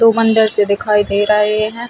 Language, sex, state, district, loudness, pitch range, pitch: Hindi, female, Chhattisgarh, Bilaspur, -13 LUFS, 205-225 Hz, 210 Hz